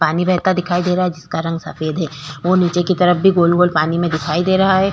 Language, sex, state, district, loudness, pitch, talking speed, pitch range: Hindi, female, Goa, North and South Goa, -16 LUFS, 175 Hz, 265 wpm, 165-185 Hz